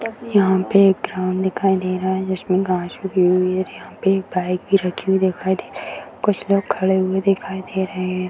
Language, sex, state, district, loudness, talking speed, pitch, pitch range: Hindi, female, Bihar, Purnia, -19 LUFS, 240 wpm, 190 Hz, 185-195 Hz